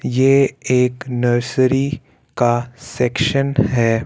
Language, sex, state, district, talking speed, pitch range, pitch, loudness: Hindi, male, Chandigarh, Chandigarh, 90 wpm, 120-135 Hz, 125 Hz, -17 LUFS